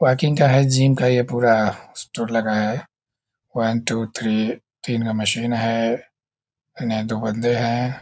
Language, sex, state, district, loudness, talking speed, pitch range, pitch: Hindi, male, Bihar, Jahanabad, -20 LUFS, 185 wpm, 110-125 Hz, 115 Hz